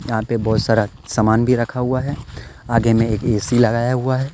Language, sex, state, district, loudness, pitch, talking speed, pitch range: Hindi, male, Jharkhand, Deoghar, -18 LUFS, 115 Hz, 220 wpm, 110-125 Hz